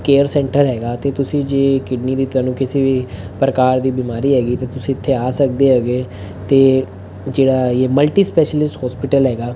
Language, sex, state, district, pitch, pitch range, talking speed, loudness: Punjabi, male, Punjab, Fazilka, 130 Hz, 125-140 Hz, 175 wpm, -16 LUFS